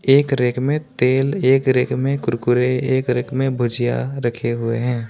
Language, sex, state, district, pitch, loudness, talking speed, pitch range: Hindi, male, Jharkhand, Ranchi, 130 Hz, -19 LUFS, 175 wpm, 120-135 Hz